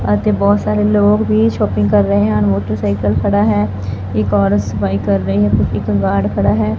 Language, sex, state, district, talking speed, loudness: Punjabi, female, Punjab, Fazilka, 205 wpm, -14 LUFS